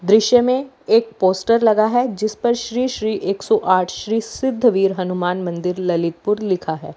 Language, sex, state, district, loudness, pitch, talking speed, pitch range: Hindi, female, Uttar Pradesh, Lalitpur, -18 LUFS, 215 Hz, 170 wpm, 185-235 Hz